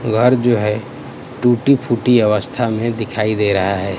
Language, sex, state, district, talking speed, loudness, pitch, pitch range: Hindi, male, Gujarat, Gandhinagar, 165 wpm, -16 LUFS, 115 Hz, 105-125 Hz